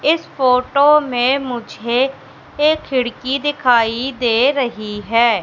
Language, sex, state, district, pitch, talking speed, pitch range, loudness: Hindi, female, Madhya Pradesh, Katni, 255 Hz, 110 wpm, 235-275 Hz, -16 LUFS